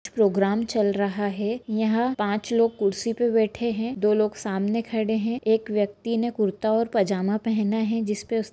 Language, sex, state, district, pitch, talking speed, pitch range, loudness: Hindi, female, Jharkhand, Jamtara, 220 Hz, 185 wpm, 205-230 Hz, -24 LUFS